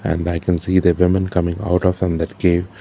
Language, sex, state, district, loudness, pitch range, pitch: English, male, Karnataka, Bangalore, -18 LUFS, 85-95 Hz, 90 Hz